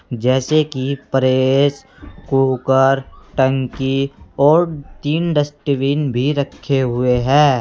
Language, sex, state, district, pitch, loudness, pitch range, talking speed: Hindi, male, Uttar Pradesh, Saharanpur, 135 Hz, -17 LUFS, 130-145 Hz, 95 wpm